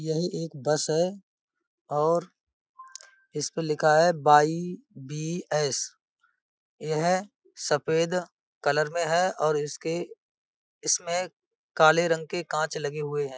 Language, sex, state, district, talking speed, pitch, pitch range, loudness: Hindi, male, Uttar Pradesh, Budaun, 115 wpm, 165 Hz, 155-185 Hz, -26 LUFS